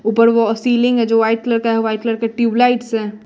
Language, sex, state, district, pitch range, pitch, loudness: Hindi, female, Bihar, West Champaran, 225-235 Hz, 230 Hz, -15 LUFS